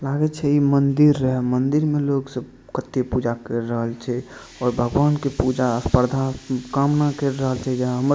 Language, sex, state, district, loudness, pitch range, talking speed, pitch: Maithili, male, Bihar, Madhepura, -21 LUFS, 125-140 Hz, 185 wpm, 130 Hz